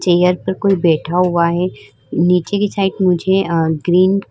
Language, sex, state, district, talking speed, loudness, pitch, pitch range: Hindi, female, Uttar Pradesh, Muzaffarnagar, 180 wpm, -15 LUFS, 180 Hz, 170-190 Hz